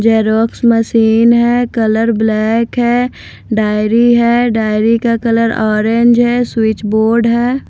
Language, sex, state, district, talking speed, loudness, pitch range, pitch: Hindi, female, Delhi, New Delhi, 125 wpm, -12 LUFS, 220-235 Hz, 230 Hz